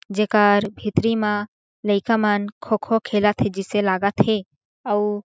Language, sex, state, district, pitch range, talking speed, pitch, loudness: Chhattisgarhi, female, Chhattisgarh, Jashpur, 205-215 Hz, 135 wpm, 205 Hz, -21 LUFS